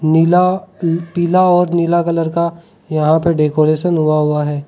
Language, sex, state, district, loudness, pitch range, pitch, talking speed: Hindi, male, Arunachal Pradesh, Lower Dibang Valley, -14 LUFS, 155-175 Hz, 170 Hz, 165 wpm